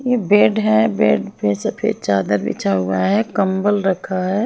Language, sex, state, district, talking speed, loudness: Hindi, female, Haryana, Jhajjar, 175 wpm, -17 LUFS